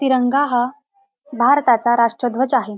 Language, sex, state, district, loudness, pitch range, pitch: Marathi, female, Maharashtra, Dhule, -17 LUFS, 240-280 Hz, 260 Hz